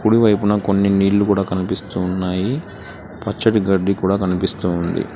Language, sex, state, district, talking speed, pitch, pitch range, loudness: Telugu, male, Telangana, Hyderabad, 130 wpm, 100 Hz, 95-100 Hz, -18 LUFS